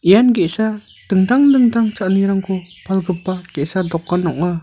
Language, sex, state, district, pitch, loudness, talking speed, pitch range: Garo, male, Meghalaya, North Garo Hills, 190 Hz, -16 LUFS, 115 wpm, 175-215 Hz